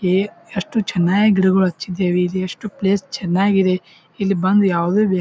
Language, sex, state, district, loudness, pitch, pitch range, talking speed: Kannada, male, Karnataka, Bijapur, -18 LUFS, 190 Hz, 180-200 Hz, 160 wpm